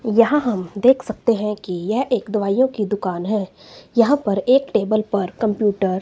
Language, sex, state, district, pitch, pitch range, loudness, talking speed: Hindi, female, Himachal Pradesh, Shimla, 215 Hz, 200-235 Hz, -19 LUFS, 190 wpm